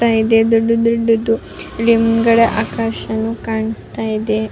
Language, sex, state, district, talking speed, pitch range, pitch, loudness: Kannada, female, Karnataka, Raichur, 80 wpm, 220-230 Hz, 225 Hz, -16 LUFS